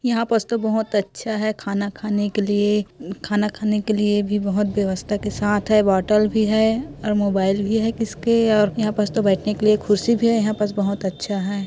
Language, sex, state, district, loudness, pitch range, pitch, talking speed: Hindi, female, Chhattisgarh, Korba, -20 LUFS, 200-220 Hz, 210 Hz, 220 wpm